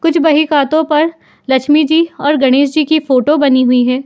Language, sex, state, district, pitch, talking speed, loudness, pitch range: Hindi, female, Uttar Pradesh, Muzaffarnagar, 300 Hz, 205 wpm, -12 LUFS, 265-310 Hz